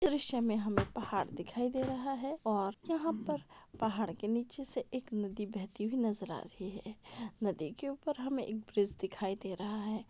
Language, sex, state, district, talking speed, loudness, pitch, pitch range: Hindi, female, Maharashtra, Pune, 195 wpm, -37 LUFS, 220 Hz, 205-260 Hz